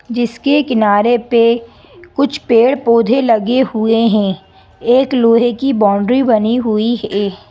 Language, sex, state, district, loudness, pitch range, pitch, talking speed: Hindi, female, Madhya Pradesh, Bhopal, -13 LUFS, 215-250 Hz, 230 Hz, 120 wpm